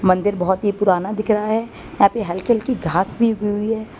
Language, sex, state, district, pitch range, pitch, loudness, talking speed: Hindi, female, Gujarat, Valsad, 190-225 Hz, 205 Hz, -19 LUFS, 240 wpm